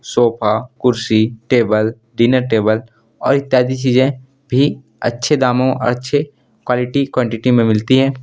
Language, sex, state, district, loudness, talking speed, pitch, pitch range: Hindi, male, Jharkhand, Deoghar, -16 LUFS, 125 wpm, 125 Hz, 115-130 Hz